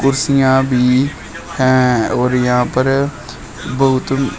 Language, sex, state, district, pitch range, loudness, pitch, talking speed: Hindi, male, Uttar Pradesh, Shamli, 125-135 Hz, -14 LUFS, 130 Hz, 95 wpm